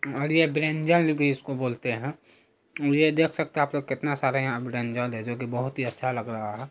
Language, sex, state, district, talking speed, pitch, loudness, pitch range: Hindi, male, Bihar, Araria, 225 wpm, 135 Hz, -26 LUFS, 120-150 Hz